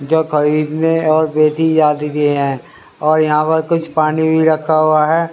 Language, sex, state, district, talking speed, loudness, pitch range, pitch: Hindi, male, Haryana, Rohtak, 180 wpm, -14 LUFS, 150-160 Hz, 155 Hz